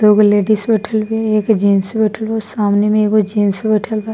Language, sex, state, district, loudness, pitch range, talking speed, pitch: Bhojpuri, female, Bihar, East Champaran, -15 LUFS, 210-220 Hz, 200 wpm, 215 Hz